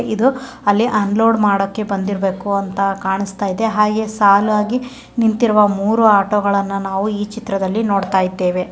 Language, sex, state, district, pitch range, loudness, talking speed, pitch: Kannada, female, Karnataka, Mysore, 195-220 Hz, -16 LUFS, 125 wpm, 205 Hz